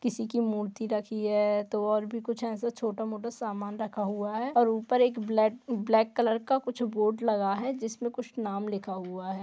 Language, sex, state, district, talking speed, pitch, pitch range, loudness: Hindi, female, Bihar, Gaya, 210 wpm, 220 Hz, 210-235 Hz, -30 LUFS